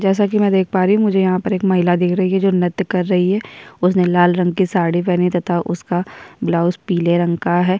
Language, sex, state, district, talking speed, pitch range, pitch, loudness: Hindi, female, Chhattisgarh, Sukma, 255 wpm, 175-190 Hz, 180 Hz, -17 LUFS